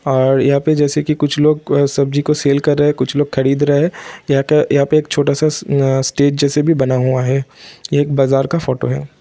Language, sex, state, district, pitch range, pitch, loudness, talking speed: Hindi, male, Bihar, Vaishali, 135-150 Hz, 140 Hz, -15 LUFS, 240 wpm